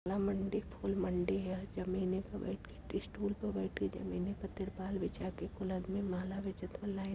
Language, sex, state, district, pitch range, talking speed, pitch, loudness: Awadhi, female, Uttar Pradesh, Varanasi, 185-195 Hz, 220 wpm, 190 Hz, -39 LUFS